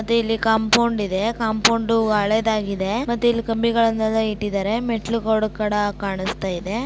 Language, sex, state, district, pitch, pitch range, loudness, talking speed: Kannada, female, Karnataka, Dakshina Kannada, 220 Hz, 210-230 Hz, -20 LUFS, 115 wpm